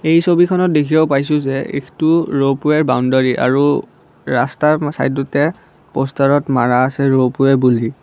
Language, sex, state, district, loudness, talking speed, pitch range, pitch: Assamese, male, Assam, Kamrup Metropolitan, -15 LUFS, 120 wpm, 135-155 Hz, 140 Hz